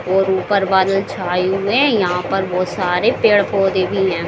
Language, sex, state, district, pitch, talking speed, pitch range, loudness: Hindi, female, Bihar, Saran, 190 Hz, 180 wpm, 185-195 Hz, -16 LUFS